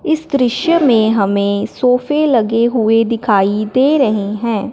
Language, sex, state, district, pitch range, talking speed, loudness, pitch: Hindi, male, Punjab, Fazilka, 215-265 Hz, 140 wpm, -14 LUFS, 230 Hz